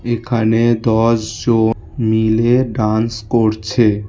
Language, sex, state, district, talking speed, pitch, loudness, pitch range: Bengali, male, West Bengal, Alipurduar, 75 wpm, 115 Hz, -15 LUFS, 110-115 Hz